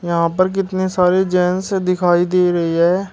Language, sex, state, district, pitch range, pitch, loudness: Hindi, male, Uttar Pradesh, Shamli, 175-185 Hz, 180 Hz, -16 LUFS